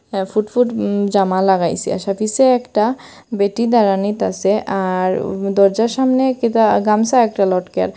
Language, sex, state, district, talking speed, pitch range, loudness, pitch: Bengali, female, Assam, Hailakandi, 150 wpm, 195-235 Hz, -16 LUFS, 205 Hz